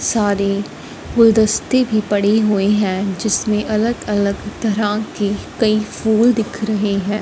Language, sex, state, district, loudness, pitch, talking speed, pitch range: Hindi, female, Punjab, Fazilka, -17 LUFS, 210 Hz, 125 wpm, 205-220 Hz